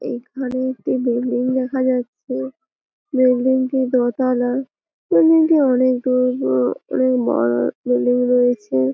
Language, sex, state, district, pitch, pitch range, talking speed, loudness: Bengali, female, West Bengal, Malda, 255 Hz, 245-260 Hz, 115 wpm, -18 LUFS